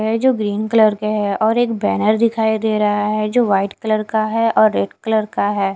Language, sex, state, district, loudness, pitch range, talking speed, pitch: Hindi, female, Bihar, Katihar, -17 LUFS, 205-220 Hz, 240 wpm, 215 Hz